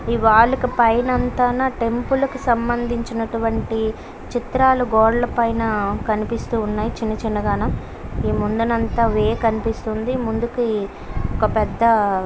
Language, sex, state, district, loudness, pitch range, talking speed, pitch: Telugu, female, Karnataka, Bellary, -20 LUFS, 220-240 Hz, 110 wpm, 230 Hz